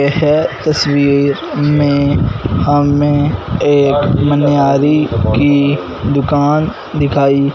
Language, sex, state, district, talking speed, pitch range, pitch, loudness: Hindi, male, Punjab, Fazilka, 70 wpm, 140-145 Hz, 145 Hz, -13 LUFS